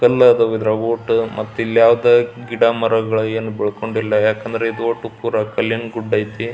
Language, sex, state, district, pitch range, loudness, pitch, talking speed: Kannada, male, Karnataka, Belgaum, 110-115 Hz, -17 LUFS, 115 Hz, 165 wpm